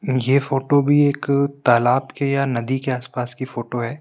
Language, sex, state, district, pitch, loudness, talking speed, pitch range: Hindi, male, Madhya Pradesh, Bhopal, 135 Hz, -20 LUFS, 195 wpm, 125-140 Hz